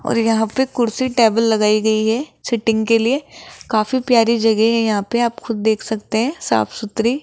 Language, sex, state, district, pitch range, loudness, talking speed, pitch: Hindi, female, Rajasthan, Jaipur, 220-240 Hz, -17 LUFS, 190 wpm, 225 Hz